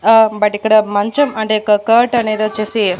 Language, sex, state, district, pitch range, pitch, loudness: Telugu, female, Andhra Pradesh, Annamaya, 210-225 Hz, 215 Hz, -14 LUFS